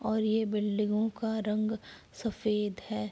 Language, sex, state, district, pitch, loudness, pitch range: Hindi, female, Uttar Pradesh, Jalaun, 215 Hz, -32 LUFS, 210-220 Hz